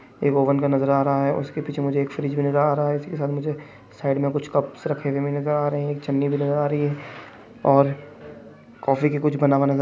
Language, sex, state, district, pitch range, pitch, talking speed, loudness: Hindi, male, Maharashtra, Solapur, 140-145 Hz, 145 Hz, 255 wpm, -22 LUFS